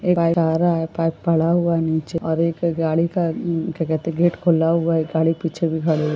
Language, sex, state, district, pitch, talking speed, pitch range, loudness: Hindi, female, Chhattisgarh, Sarguja, 165 Hz, 265 wpm, 160-170 Hz, -20 LUFS